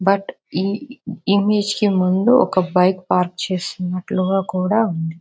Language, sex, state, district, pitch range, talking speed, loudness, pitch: Telugu, female, Andhra Pradesh, Visakhapatnam, 180-205 Hz, 125 wpm, -19 LUFS, 190 Hz